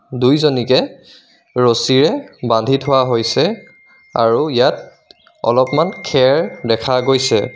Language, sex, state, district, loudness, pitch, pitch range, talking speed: Assamese, male, Assam, Kamrup Metropolitan, -15 LUFS, 130 Hz, 120-135 Hz, 85 wpm